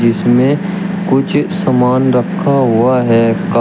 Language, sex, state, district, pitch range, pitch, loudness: Hindi, male, Uttar Pradesh, Shamli, 120-150 Hz, 130 Hz, -12 LUFS